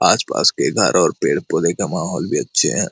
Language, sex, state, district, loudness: Hindi, male, Jharkhand, Jamtara, -17 LUFS